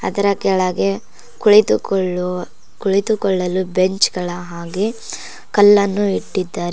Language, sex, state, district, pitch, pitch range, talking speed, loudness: Kannada, female, Karnataka, Koppal, 190 Hz, 180-200 Hz, 80 wpm, -17 LUFS